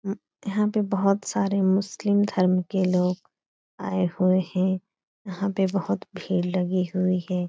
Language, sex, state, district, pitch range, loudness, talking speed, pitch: Hindi, female, Bihar, Supaul, 185-195 Hz, -25 LUFS, 145 wpm, 190 Hz